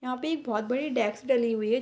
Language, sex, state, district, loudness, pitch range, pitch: Hindi, female, Bihar, Darbhanga, -28 LUFS, 220-260 Hz, 250 Hz